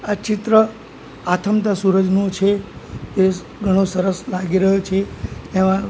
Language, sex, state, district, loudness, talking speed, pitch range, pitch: Gujarati, male, Gujarat, Gandhinagar, -18 LUFS, 120 wpm, 190-205 Hz, 195 Hz